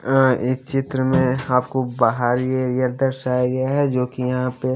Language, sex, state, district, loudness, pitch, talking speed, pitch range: Hindi, male, Haryana, Jhajjar, -20 LUFS, 130 Hz, 165 wpm, 125-130 Hz